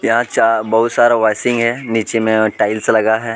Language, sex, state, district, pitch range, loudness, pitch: Hindi, male, Jharkhand, Deoghar, 110-115 Hz, -14 LUFS, 115 Hz